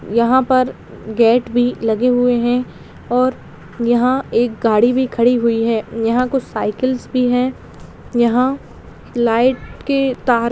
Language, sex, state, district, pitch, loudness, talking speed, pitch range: Hindi, female, Bihar, Begusarai, 245 Hz, -16 LUFS, 145 wpm, 235-255 Hz